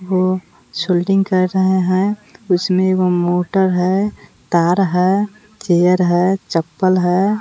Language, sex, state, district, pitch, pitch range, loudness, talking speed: Hindi, female, Bihar, West Champaran, 185 Hz, 180-195 Hz, -16 LUFS, 120 wpm